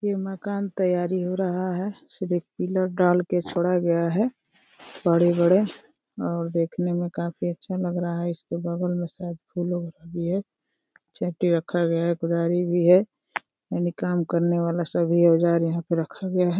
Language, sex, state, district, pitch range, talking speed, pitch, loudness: Hindi, female, Uttar Pradesh, Deoria, 170-185 Hz, 175 wpm, 175 Hz, -25 LUFS